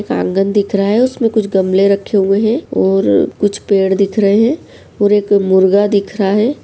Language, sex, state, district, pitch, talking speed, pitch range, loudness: Hindi, female, Uttar Pradesh, Varanasi, 200 Hz, 215 wpm, 195-210 Hz, -13 LUFS